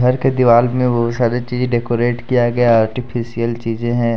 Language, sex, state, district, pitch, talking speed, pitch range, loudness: Hindi, male, Jharkhand, Deoghar, 120 Hz, 200 wpm, 115-125 Hz, -16 LUFS